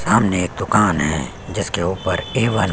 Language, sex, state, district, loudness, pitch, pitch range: Hindi, male, Chhattisgarh, Sukma, -19 LUFS, 95 Hz, 90-110 Hz